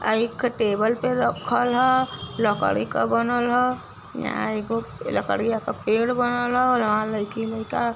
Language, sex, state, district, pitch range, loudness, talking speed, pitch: Bhojpuri, female, Uttar Pradesh, Varanasi, 215-245 Hz, -23 LUFS, 165 wpm, 230 Hz